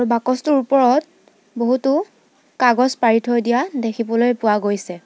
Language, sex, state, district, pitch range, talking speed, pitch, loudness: Assamese, female, Assam, Sonitpur, 230-270 Hz, 120 wpm, 245 Hz, -18 LUFS